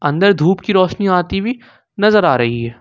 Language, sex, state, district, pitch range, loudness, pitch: Hindi, male, Jharkhand, Ranchi, 145-200 Hz, -14 LUFS, 190 Hz